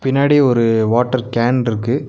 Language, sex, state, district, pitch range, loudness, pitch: Tamil, male, Tamil Nadu, Nilgiris, 115-135 Hz, -15 LUFS, 125 Hz